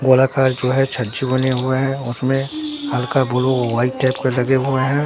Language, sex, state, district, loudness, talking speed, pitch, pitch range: Hindi, male, Bihar, Katihar, -18 LUFS, 190 wpm, 130 Hz, 130-135 Hz